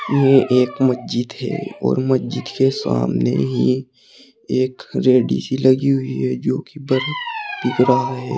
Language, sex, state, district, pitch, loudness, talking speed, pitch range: Hindi, male, Uttar Pradesh, Saharanpur, 130 Hz, -18 LUFS, 150 wpm, 120-135 Hz